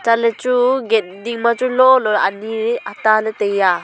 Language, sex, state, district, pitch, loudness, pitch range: Wancho, female, Arunachal Pradesh, Longding, 225 Hz, -16 LUFS, 210-240 Hz